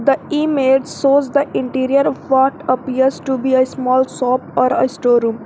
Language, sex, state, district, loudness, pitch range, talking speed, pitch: English, female, Jharkhand, Garhwa, -16 LUFS, 255-275 Hz, 175 wpm, 265 Hz